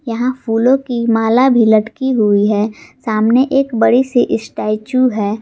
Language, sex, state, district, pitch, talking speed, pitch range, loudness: Hindi, female, Jharkhand, Garhwa, 230 Hz, 155 wpm, 215-255 Hz, -14 LUFS